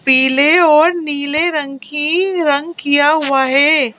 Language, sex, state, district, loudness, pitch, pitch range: Hindi, female, Madhya Pradesh, Bhopal, -13 LUFS, 295 Hz, 275-315 Hz